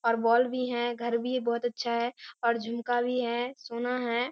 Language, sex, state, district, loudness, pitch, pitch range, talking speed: Hindi, female, Bihar, Kishanganj, -29 LUFS, 240 Hz, 235-245 Hz, 210 wpm